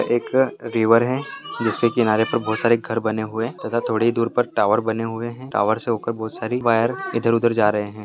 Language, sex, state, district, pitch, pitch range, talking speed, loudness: Hindi, male, Bihar, Saharsa, 115 Hz, 110-120 Hz, 210 wpm, -21 LUFS